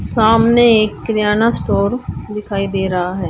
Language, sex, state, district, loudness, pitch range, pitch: Hindi, female, Haryana, Charkhi Dadri, -15 LUFS, 195-225 Hz, 215 Hz